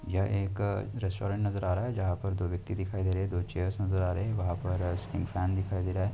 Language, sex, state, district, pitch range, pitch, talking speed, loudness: Hindi, male, Bihar, Begusarai, 90-100 Hz, 95 Hz, 285 wpm, -32 LUFS